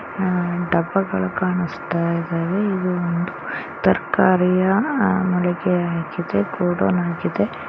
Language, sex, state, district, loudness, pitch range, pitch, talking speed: Kannada, female, Karnataka, Chamarajanagar, -20 LUFS, 170-185 Hz, 175 Hz, 60 wpm